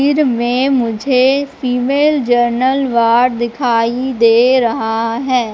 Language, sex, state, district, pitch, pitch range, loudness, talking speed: Hindi, female, Madhya Pradesh, Katni, 250 Hz, 235-265 Hz, -14 LUFS, 110 wpm